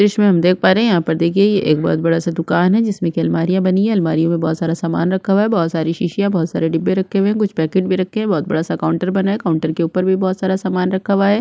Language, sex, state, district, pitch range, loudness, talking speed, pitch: Hindi, female, Chhattisgarh, Sukma, 165-195 Hz, -16 LUFS, 315 wpm, 185 Hz